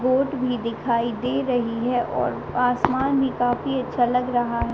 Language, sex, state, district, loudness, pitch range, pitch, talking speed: Hindi, female, Uttar Pradesh, Deoria, -23 LUFS, 240-260 Hz, 250 Hz, 175 wpm